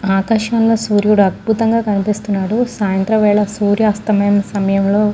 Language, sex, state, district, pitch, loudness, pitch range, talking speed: Telugu, female, Andhra Pradesh, Guntur, 210 Hz, -15 LUFS, 200-220 Hz, 140 wpm